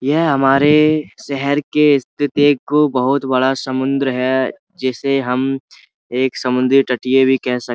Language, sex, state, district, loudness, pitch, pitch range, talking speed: Hindi, male, Uttar Pradesh, Budaun, -16 LUFS, 135 Hz, 130-145 Hz, 145 wpm